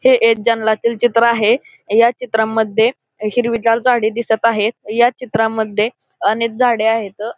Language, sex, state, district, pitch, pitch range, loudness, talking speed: Marathi, male, Maharashtra, Pune, 230 Hz, 220-240 Hz, -16 LUFS, 130 wpm